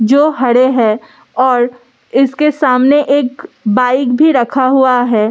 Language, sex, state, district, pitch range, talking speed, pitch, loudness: Hindi, female, Delhi, New Delhi, 245-275 Hz, 135 wpm, 260 Hz, -12 LUFS